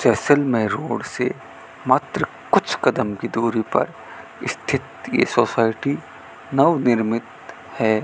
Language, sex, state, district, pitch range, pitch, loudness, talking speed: Hindi, male, Rajasthan, Bikaner, 110-130 Hz, 115 Hz, -21 LUFS, 105 wpm